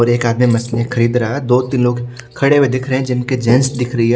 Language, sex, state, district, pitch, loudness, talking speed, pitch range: Hindi, male, Chhattisgarh, Raipur, 125 Hz, -15 LUFS, 290 wpm, 120-130 Hz